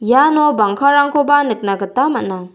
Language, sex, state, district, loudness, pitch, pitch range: Garo, female, Meghalaya, South Garo Hills, -14 LUFS, 270 Hz, 200-290 Hz